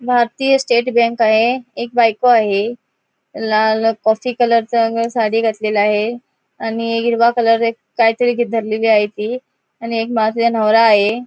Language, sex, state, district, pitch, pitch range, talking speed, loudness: Marathi, female, Goa, North and South Goa, 230 Hz, 220-240 Hz, 130 wpm, -15 LUFS